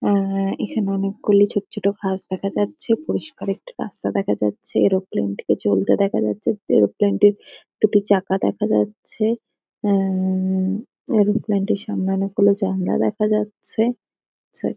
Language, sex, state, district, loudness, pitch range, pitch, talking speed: Bengali, female, West Bengal, Kolkata, -20 LUFS, 185-210 Hz, 195 Hz, 140 wpm